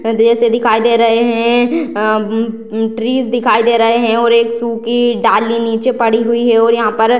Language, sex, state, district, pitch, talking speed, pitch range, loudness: Hindi, female, Bihar, Sitamarhi, 230 Hz, 225 wpm, 225-235 Hz, -13 LUFS